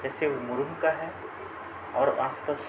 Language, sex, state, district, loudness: Hindi, male, Uttar Pradesh, Budaun, -30 LUFS